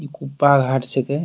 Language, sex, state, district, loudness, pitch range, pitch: Angika, male, Bihar, Bhagalpur, -18 LUFS, 130-145 Hz, 140 Hz